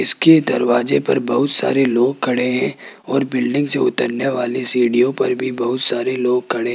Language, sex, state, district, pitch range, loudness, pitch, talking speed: Hindi, male, Rajasthan, Jaipur, 120-135 Hz, -17 LUFS, 125 Hz, 180 wpm